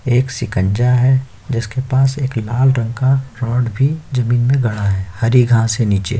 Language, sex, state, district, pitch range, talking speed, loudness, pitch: Hindi, male, Chhattisgarh, Korba, 115-130 Hz, 195 wpm, -16 LUFS, 125 Hz